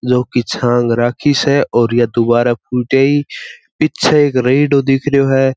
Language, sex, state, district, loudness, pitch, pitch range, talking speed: Marwari, male, Rajasthan, Churu, -13 LUFS, 130 Hz, 120-140 Hz, 160 wpm